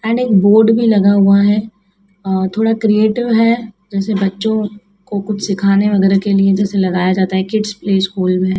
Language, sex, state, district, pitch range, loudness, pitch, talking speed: Hindi, female, Madhya Pradesh, Dhar, 195-215 Hz, -14 LUFS, 200 Hz, 190 wpm